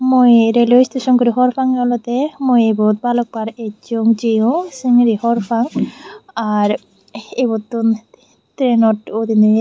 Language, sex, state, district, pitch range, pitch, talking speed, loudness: Chakma, female, Tripura, Unakoti, 225-250 Hz, 235 Hz, 125 wpm, -15 LUFS